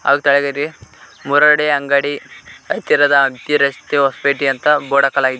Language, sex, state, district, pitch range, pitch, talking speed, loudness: Kannada, male, Karnataka, Koppal, 140-145 Hz, 140 Hz, 120 wpm, -15 LUFS